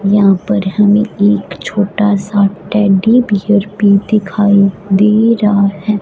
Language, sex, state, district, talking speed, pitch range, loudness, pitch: Hindi, female, Punjab, Fazilka, 130 wpm, 195-210 Hz, -12 LUFS, 205 Hz